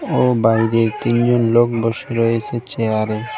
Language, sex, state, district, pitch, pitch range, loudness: Bengali, male, West Bengal, Cooch Behar, 115 Hz, 115-120 Hz, -17 LUFS